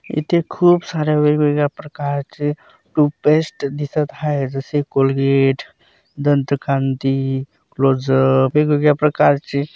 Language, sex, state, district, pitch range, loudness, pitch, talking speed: Marathi, male, Maharashtra, Dhule, 135-150 Hz, -18 LUFS, 145 Hz, 90 wpm